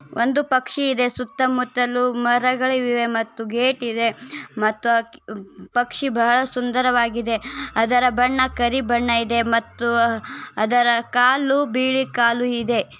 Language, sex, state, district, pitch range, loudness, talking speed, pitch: Kannada, female, Karnataka, Bellary, 235-255 Hz, -20 LUFS, 125 wpm, 245 Hz